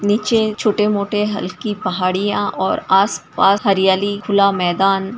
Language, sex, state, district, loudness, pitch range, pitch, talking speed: Hindi, female, Uttar Pradesh, Ghazipur, -17 LUFS, 190-210 Hz, 200 Hz, 140 wpm